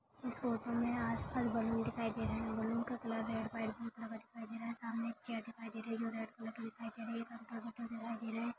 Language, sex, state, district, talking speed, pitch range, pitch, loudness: Hindi, female, Maharashtra, Dhule, 260 wpm, 225-230 Hz, 230 Hz, -41 LUFS